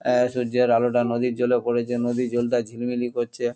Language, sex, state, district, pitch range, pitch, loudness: Bengali, male, West Bengal, North 24 Parganas, 120-125 Hz, 120 Hz, -23 LUFS